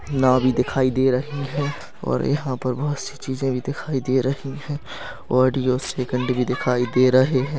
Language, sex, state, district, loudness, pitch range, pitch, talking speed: Hindi, male, Chhattisgarh, Rajnandgaon, -22 LUFS, 130-140 Hz, 130 Hz, 190 wpm